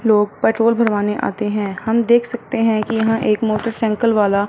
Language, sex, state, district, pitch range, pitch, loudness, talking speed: Hindi, female, Punjab, Fazilka, 210-230 Hz, 220 Hz, -17 LUFS, 185 wpm